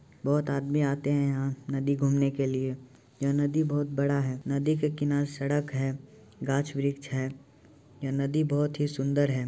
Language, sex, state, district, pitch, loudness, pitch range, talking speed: Maithili, male, Bihar, Supaul, 140 Hz, -29 LUFS, 135-145 Hz, 170 wpm